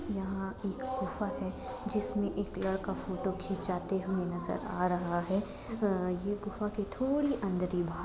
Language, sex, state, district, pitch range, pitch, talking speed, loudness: Hindi, female, Jharkhand, Jamtara, 180-205 Hz, 195 Hz, 155 wpm, -34 LUFS